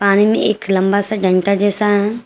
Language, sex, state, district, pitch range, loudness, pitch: Hindi, female, Jharkhand, Garhwa, 200-210 Hz, -15 LUFS, 205 Hz